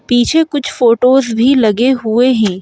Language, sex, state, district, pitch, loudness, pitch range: Hindi, female, Madhya Pradesh, Bhopal, 245 Hz, -12 LUFS, 230-265 Hz